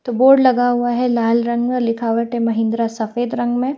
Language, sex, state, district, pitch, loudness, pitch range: Hindi, female, Haryana, Jhajjar, 240 Hz, -17 LUFS, 230-245 Hz